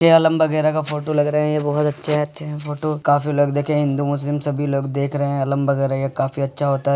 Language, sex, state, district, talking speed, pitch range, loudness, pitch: Hindi, male, Uttar Pradesh, Muzaffarnagar, 295 wpm, 140-150 Hz, -20 LUFS, 145 Hz